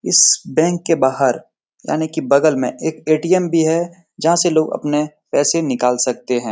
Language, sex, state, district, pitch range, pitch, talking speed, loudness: Hindi, male, Uttar Pradesh, Etah, 140-165 Hz, 155 Hz, 185 wpm, -16 LUFS